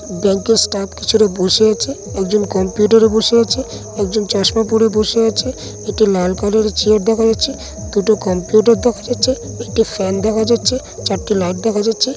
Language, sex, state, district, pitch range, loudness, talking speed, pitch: Bengali, male, West Bengal, Dakshin Dinajpur, 205-225 Hz, -15 LUFS, 165 wpm, 215 Hz